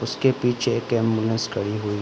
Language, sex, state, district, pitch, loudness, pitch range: Hindi, male, Uttar Pradesh, Ghazipur, 115 Hz, -23 LUFS, 105-120 Hz